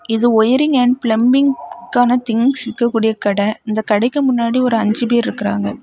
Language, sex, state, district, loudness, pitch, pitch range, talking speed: Tamil, female, Tamil Nadu, Kanyakumari, -15 LUFS, 235 Hz, 220-250 Hz, 155 wpm